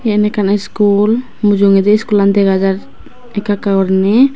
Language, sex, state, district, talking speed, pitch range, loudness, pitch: Chakma, female, Tripura, West Tripura, 135 wpm, 200-215 Hz, -13 LUFS, 205 Hz